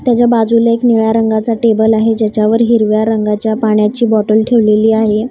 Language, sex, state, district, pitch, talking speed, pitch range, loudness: Marathi, female, Maharashtra, Gondia, 220 Hz, 160 wpm, 215-230 Hz, -11 LUFS